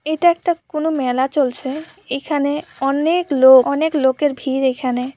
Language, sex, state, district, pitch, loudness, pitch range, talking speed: Bengali, female, West Bengal, Purulia, 285 Hz, -17 LUFS, 265-315 Hz, 140 wpm